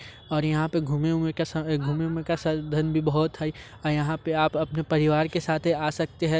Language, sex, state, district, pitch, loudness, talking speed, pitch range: Hindi, male, Bihar, Muzaffarpur, 155 Hz, -26 LUFS, 205 wpm, 155-160 Hz